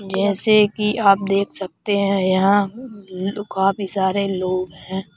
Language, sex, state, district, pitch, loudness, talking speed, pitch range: Hindi, male, Madhya Pradesh, Bhopal, 195 Hz, -19 LUFS, 130 wpm, 190-205 Hz